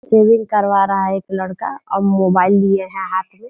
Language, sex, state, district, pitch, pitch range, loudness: Hindi, female, Bihar, Purnia, 195 Hz, 190-200 Hz, -16 LUFS